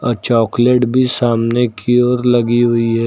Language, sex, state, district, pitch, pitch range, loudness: Hindi, male, Uttar Pradesh, Lucknow, 120 Hz, 115-125 Hz, -14 LUFS